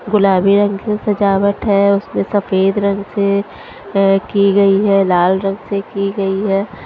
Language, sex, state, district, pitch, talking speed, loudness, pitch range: Hindi, female, Haryana, Charkhi Dadri, 200 Hz, 165 wpm, -15 LUFS, 195-200 Hz